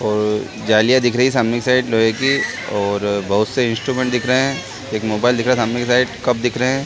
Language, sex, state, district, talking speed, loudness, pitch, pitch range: Hindi, male, Chhattisgarh, Sarguja, 255 wpm, -17 LUFS, 120 Hz, 110-125 Hz